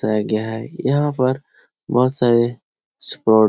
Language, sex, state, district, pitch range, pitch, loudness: Hindi, male, Bihar, Jahanabad, 110-130 Hz, 120 Hz, -19 LUFS